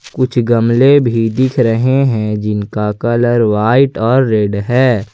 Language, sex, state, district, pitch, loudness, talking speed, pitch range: Hindi, male, Jharkhand, Ranchi, 120 Hz, -13 LUFS, 140 wpm, 105-130 Hz